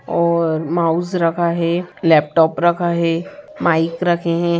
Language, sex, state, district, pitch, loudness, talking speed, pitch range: Hindi, female, Bihar, Begusarai, 170 Hz, -17 LUFS, 130 wpm, 165-175 Hz